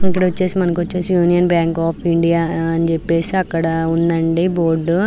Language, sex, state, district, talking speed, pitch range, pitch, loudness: Telugu, female, Andhra Pradesh, Anantapur, 155 wpm, 165-180 Hz, 170 Hz, -17 LUFS